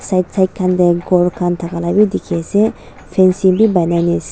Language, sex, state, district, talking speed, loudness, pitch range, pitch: Nagamese, female, Nagaland, Dimapur, 220 wpm, -15 LUFS, 175-190 Hz, 180 Hz